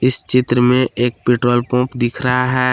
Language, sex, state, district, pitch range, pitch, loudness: Hindi, male, Jharkhand, Palamu, 120-125 Hz, 125 Hz, -15 LUFS